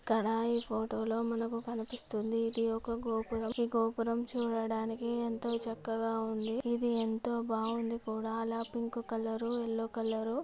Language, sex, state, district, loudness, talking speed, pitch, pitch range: Telugu, female, Andhra Pradesh, Guntur, -35 LUFS, 145 wpm, 230 Hz, 225-235 Hz